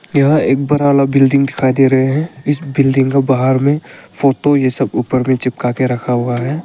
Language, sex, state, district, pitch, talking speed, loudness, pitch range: Hindi, male, Arunachal Pradesh, Longding, 135 Hz, 210 wpm, -14 LUFS, 130-140 Hz